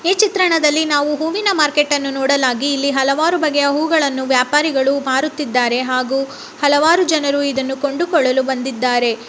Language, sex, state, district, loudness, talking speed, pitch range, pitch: Kannada, male, Karnataka, Bellary, -16 LUFS, 115 wpm, 265-310 Hz, 285 Hz